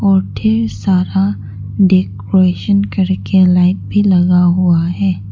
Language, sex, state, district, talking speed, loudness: Hindi, female, Arunachal Pradesh, Papum Pare, 115 wpm, -13 LUFS